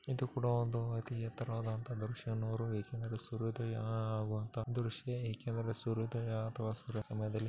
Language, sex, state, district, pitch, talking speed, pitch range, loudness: Kannada, male, Karnataka, Bellary, 115 Hz, 145 wpm, 110-120 Hz, -40 LUFS